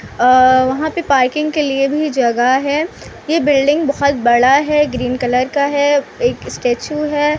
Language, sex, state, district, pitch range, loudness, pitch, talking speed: Hindi, female, Bihar, Kishanganj, 255-300 Hz, -14 LUFS, 280 Hz, 180 wpm